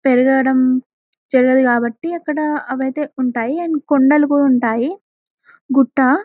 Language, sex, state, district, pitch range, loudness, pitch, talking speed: Telugu, female, Telangana, Karimnagar, 255-295 Hz, -16 LUFS, 265 Hz, 125 wpm